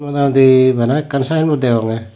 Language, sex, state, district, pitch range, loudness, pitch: Chakma, male, Tripura, Dhalai, 120-145 Hz, -14 LUFS, 130 Hz